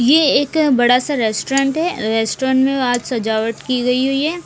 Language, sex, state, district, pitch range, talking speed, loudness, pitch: Hindi, female, Bihar, Kaimur, 240-280 Hz, 190 wpm, -16 LUFS, 260 Hz